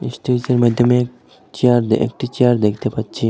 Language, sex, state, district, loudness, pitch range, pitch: Bengali, male, Assam, Hailakandi, -17 LUFS, 110-125 Hz, 120 Hz